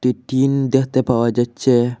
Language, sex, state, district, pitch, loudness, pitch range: Bengali, male, Assam, Hailakandi, 125 Hz, -17 LUFS, 120-135 Hz